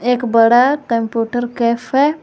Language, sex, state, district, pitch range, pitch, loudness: Hindi, female, Jharkhand, Garhwa, 230-255 Hz, 240 Hz, -15 LUFS